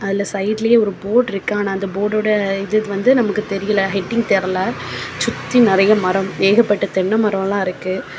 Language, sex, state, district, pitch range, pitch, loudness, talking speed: Tamil, female, Tamil Nadu, Kanyakumari, 195-215 Hz, 200 Hz, -17 LUFS, 155 wpm